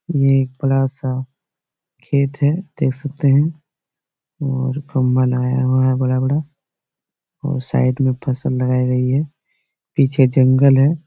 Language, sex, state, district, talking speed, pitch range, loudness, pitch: Hindi, male, Chhattisgarh, Bastar, 130 wpm, 130-145 Hz, -18 LUFS, 135 Hz